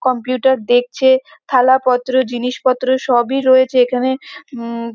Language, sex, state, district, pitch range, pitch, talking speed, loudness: Bengali, female, West Bengal, North 24 Parganas, 245-260 Hz, 255 Hz, 110 wpm, -15 LUFS